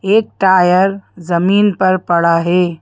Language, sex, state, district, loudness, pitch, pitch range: Hindi, female, Madhya Pradesh, Bhopal, -13 LUFS, 185 Hz, 170-195 Hz